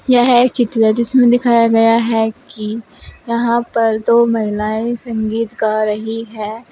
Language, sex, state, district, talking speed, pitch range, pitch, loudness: Hindi, female, Uttar Pradesh, Saharanpur, 150 wpm, 220-235 Hz, 230 Hz, -15 LUFS